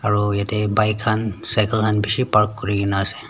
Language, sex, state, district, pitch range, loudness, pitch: Nagamese, male, Nagaland, Dimapur, 105-110 Hz, -20 LUFS, 105 Hz